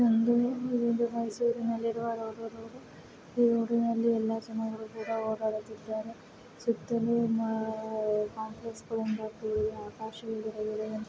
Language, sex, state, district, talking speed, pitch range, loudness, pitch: Kannada, female, Karnataka, Mysore, 70 wpm, 220-230 Hz, -32 LUFS, 225 Hz